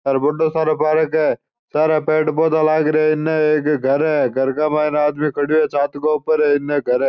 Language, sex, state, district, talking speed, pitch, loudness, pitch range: Marwari, male, Rajasthan, Churu, 230 wpm, 150 Hz, -17 LUFS, 145-155 Hz